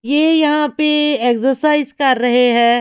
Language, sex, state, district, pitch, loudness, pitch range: Hindi, female, Maharashtra, Mumbai Suburban, 285 Hz, -14 LUFS, 245-300 Hz